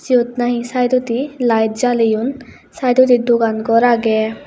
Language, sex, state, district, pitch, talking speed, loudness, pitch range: Chakma, female, Tripura, West Tripura, 240 Hz, 120 wpm, -15 LUFS, 225-250 Hz